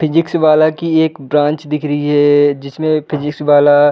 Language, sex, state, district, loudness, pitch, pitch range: Hindi, male, Uttar Pradesh, Budaun, -13 LUFS, 150 Hz, 145-155 Hz